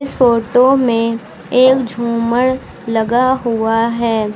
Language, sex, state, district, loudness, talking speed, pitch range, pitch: Hindi, female, Uttar Pradesh, Lucknow, -14 LUFS, 95 wpm, 230-255 Hz, 235 Hz